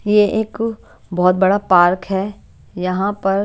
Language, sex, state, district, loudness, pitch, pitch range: Hindi, female, Chandigarh, Chandigarh, -17 LUFS, 195 Hz, 180-205 Hz